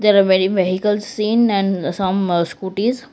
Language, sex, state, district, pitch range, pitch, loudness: English, female, Gujarat, Valsad, 190-210 Hz, 195 Hz, -18 LUFS